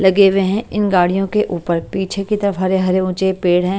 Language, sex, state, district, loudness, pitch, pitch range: Hindi, female, Odisha, Malkangiri, -16 LUFS, 190 Hz, 185-195 Hz